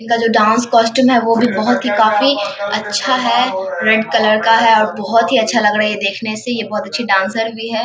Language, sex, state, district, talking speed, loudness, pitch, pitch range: Hindi, male, Bihar, Saharsa, 245 wpm, -14 LUFS, 220 Hz, 210-230 Hz